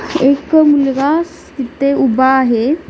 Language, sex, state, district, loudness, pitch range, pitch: Marathi, female, Maharashtra, Nagpur, -12 LUFS, 265-305 Hz, 275 Hz